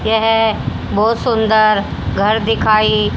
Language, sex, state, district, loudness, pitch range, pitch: Hindi, female, Haryana, Charkhi Dadri, -14 LUFS, 215-225 Hz, 220 Hz